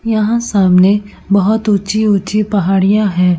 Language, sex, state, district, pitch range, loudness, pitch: Hindi, female, Uttar Pradesh, Etah, 195-215 Hz, -13 LUFS, 205 Hz